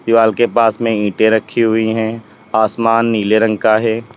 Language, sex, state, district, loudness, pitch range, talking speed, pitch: Hindi, male, Uttar Pradesh, Lalitpur, -14 LUFS, 110-115 Hz, 185 wpm, 110 Hz